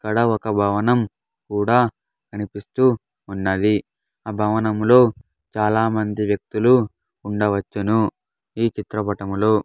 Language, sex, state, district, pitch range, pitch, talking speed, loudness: Telugu, male, Andhra Pradesh, Sri Satya Sai, 105-110 Hz, 105 Hz, 80 wpm, -20 LUFS